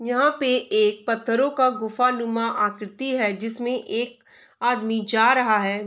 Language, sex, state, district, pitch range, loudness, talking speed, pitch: Hindi, female, Bihar, Saharsa, 220-255 Hz, -22 LUFS, 145 wpm, 240 Hz